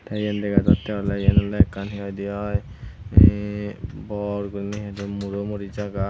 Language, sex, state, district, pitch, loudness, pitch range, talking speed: Chakma, male, Tripura, Unakoti, 100 Hz, -23 LUFS, 100-105 Hz, 175 wpm